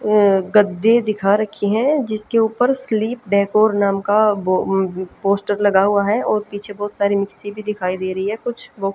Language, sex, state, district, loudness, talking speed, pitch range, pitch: Hindi, female, Haryana, Jhajjar, -18 LUFS, 190 wpm, 200-215 Hz, 205 Hz